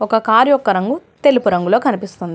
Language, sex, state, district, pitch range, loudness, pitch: Telugu, female, Telangana, Hyderabad, 195-270 Hz, -15 LUFS, 220 Hz